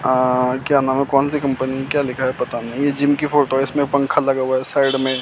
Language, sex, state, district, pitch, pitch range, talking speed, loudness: Hindi, male, Chandigarh, Chandigarh, 135 Hz, 130-140 Hz, 275 wpm, -18 LUFS